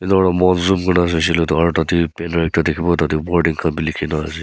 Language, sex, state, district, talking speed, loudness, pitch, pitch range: Nagamese, male, Nagaland, Kohima, 270 wpm, -17 LUFS, 85 Hz, 80-90 Hz